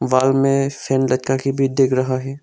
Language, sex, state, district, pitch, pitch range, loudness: Hindi, male, Arunachal Pradesh, Longding, 135 Hz, 130-135 Hz, -18 LUFS